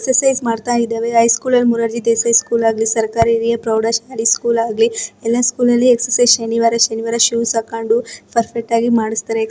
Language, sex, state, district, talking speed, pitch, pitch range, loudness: Kannada, female, Karnataka, Dakshina Kannada, 165 wpm, 230 Hz, 225-235 Hz, -15 LUFS